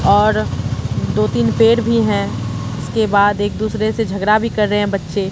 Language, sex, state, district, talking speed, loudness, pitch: Hindi, female, Bihar, Katihar, 180 wpm, -16 LUFS, 200 Hz